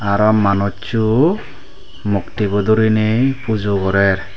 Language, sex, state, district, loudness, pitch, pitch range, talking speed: Chakma, male, Tripura, Dhalai, -16 LUFS, 105 Hz, 100-110 Hz, 95 wpm